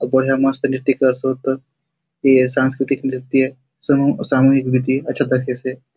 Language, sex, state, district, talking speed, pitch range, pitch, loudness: Halbi, male, Chhattisgarh, Bastar, 120 wpm, 130-140 Hz, 135 Hz, -18 LUFS